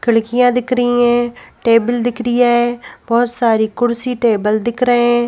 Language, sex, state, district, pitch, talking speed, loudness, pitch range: Hindi, female, Madhya Pradesh, Bhopal, 240 Hz, 170 wpm, -15 LUFS, 235-245 Hz